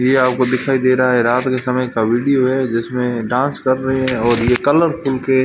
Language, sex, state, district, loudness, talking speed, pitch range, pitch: Hindi, male, Rajasthan, Jaisalmer, -16 LUFS, 230 wpm, 125-130 Hz, 130 Hz